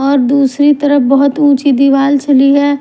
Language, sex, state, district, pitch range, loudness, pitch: Hindi, female, Himachal Pradesh, Shimla, 275-285 Hz, -10 LUFS, 280 Hz